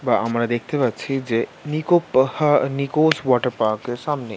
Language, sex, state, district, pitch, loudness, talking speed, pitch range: Bengali, male, West Bengal, North 24 Parganas, 135 Hz, -20 LUFS, 150 wpm, 120-150 Hz